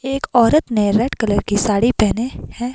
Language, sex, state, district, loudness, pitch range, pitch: Hindi, female, Himachal Pradesh, Shimla, -17 LUFS, 210-250 Hz, 230 Hz